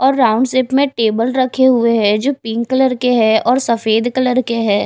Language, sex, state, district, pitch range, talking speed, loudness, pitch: Hindi, female, Bihar, West Champaran, 225-260 Hz, 220 wpm, -14 LUFS, 245 Hz